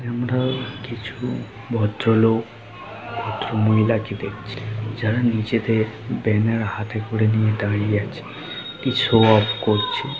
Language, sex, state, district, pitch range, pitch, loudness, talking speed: Bengali, male, West Bengal, Jhargram, 110-120 Hz, 110 Hz, -21 LUFS, 120 wpm